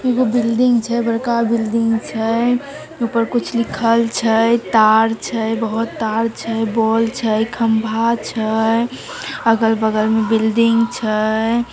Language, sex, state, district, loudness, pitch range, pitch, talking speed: Maithili, female, Bihar, Samastipur, -17 LUFS, 225-235 Hz, 230 Hz, 120 wpm